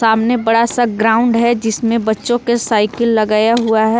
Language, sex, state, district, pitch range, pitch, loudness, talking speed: Hindi, female, Jharkhand, Palamu, 220-235 Hz, 230 Hz, -14 LUFS, 180 wpm